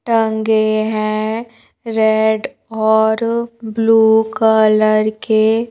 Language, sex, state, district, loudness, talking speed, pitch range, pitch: Hindi, female, Madhya Pradesh, Bhopal, -15 LUFS, 75 wpm, 220-225 Hz, 220 Hz